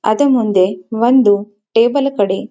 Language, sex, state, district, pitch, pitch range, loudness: Kannada, female, Karnataka, Belgaum, 215 Hz, 200-245 Hz, -14 LUFS